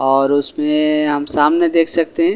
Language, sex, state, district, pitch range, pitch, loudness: Hindi, male, Delhi, New Delhi, 145-165 Hz, 150 Hz, -15 LUFS